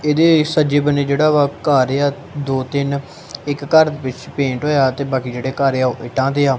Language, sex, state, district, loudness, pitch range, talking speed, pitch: Punjabi, male, Punjab, Kapurthala, -17 LUFS, 135-145 Hz, 225 wpm, 140 Hz